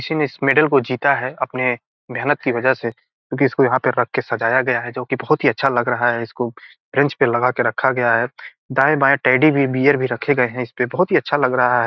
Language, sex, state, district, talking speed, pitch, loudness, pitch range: Hindi, male, Bihar, Gopalganj, 255 wpm, 130 Hz, -18 LUFS, 120-135 Hz